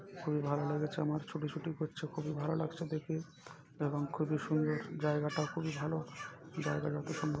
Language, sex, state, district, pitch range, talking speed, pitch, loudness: Bengali, male, West Bengal, North 24 Parganas, 150-160 Hz, 155 wpm, 155 Hz, -37 LUFS